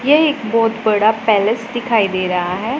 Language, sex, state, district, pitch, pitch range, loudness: Hindi, female, Punjab, Pathankot, 225 Hz, 210-240 Hz, -16 LUFS